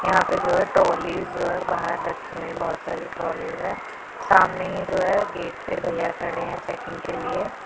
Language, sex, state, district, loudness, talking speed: Hindi, female, Punjab, Pathankot, -24 LUFS, 205 wpm